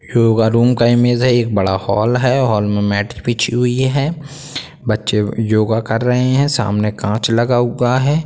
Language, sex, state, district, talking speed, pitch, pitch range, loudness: Hindi, male, Bihar, Sitamarhi, 190 wpm, 120 Hz, 110-130 Hz, -15 LUFS